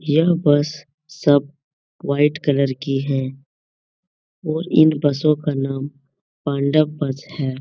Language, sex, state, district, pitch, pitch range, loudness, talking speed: Hindi, male, Bihar, Jamui, 145 Hz, 135-150 Hz, -19 LUFS, 125 wpm